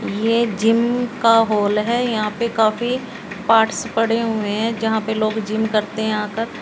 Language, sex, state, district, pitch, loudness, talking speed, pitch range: Hindi, female, Haryana, Jhajjar, 220 Hz, -19 LUFS, 170 wpm, 215-230 Hz